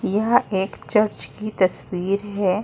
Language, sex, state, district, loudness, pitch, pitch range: Hindi, female, Uttar Pradesh, Muzaffarnagar, -22 LUFS, 200 Hz, 190-215 Hz